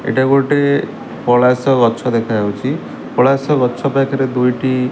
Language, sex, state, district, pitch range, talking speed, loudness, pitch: Odia, male, Odisha, Khordha, 125-135 Hz, 110 wpm, -15 LUFS, 130 Hz